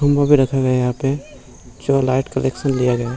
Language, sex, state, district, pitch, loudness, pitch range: Hindi, male, Bihar, Gaya, 135 Hz, -18 LUFS, 125-140 Hz